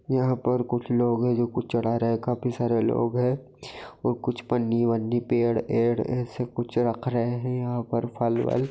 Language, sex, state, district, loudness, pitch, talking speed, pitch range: Hindi, male, Bihar, Gaya, -26 LUFS, 120 Hz, 185 wpm, 115-125 Hz